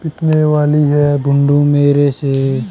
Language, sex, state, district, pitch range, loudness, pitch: Hindi, male, Haryana, Charkhi Dadri, 140-150 Hz, -13 LUFS, 145 Hz